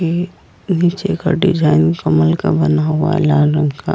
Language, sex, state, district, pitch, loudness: Hindi, female, Goa, North and South Goa, 150 Hz, -15 LUFS